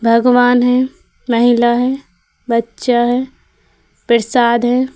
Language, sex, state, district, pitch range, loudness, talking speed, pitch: Hindi, female, Bihar, Vaishali, 235-250 Hz, -14 LUFS, 110 wpm, 245 Hz